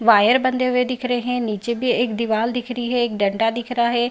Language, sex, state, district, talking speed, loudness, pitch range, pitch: Hindi, female, Bihar, Saharsa, 265 wpm, -20 LUFS, 230-250 Hz, 240 Hz